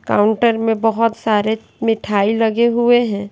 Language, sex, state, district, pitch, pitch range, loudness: Hindi, female, Bihar, West Champaran, 225 Hz, 210-230 Hz, -16 LUFS